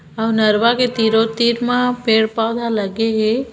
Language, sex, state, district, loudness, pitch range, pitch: Hindi, female, Chhattisgarh, Bilaspur, -16 LUFS, 220-235 Hz, 225 Hz